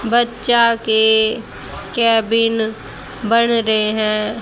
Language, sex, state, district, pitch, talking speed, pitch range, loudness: Hindi, male, Haryana, Jhajjar, 225 Hz, 80 wpm, 220-230 Hz, -15 LUFS